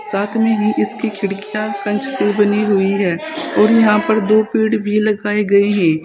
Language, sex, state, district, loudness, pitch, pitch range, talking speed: Hindi, female, Uttar Pradesh, Saharanpur, -16 LUFS, 210 Hz, 200-215 Hz, 190 wpm